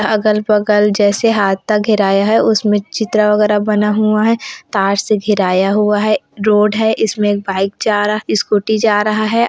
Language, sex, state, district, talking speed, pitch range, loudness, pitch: Hindi, female, Chhattisgarh, Kabirdham, 195 wpm, 205-215 Hz, -14 LUFS, 210 Hz